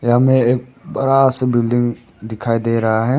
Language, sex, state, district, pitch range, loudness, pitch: Hindi, male, Arunachal Pradesh, Papum Pare, 115-130 Hz, -16 LUFS, 120 Hz